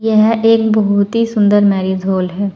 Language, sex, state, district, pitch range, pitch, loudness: Hindi, female, Uttar Pradesh, Saharanpur, 195-220 Hz, 205 Hz, -13 LUFS